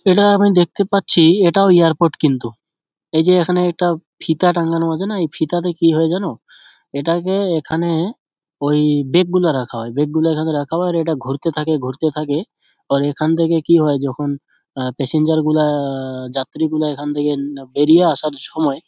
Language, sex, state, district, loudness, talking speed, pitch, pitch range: Bengali, male, West Bengal, Dakshin Dinajpur, -17 LUFS, 170 wpm, 160 Hz, 145-170 Hz